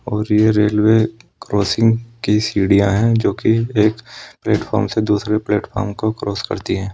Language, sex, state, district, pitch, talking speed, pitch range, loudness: Hindi, male, Uttar Pradesh, Saharanpur, 105 Hz, 155 wpm, 105-110 Hz, -17 LUFS